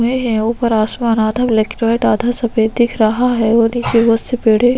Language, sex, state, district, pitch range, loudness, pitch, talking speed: Hindi, female, Chhattisgarh, Sukma, 220-240 Hz, -14 LUFS, 230 Hz, 215 wpm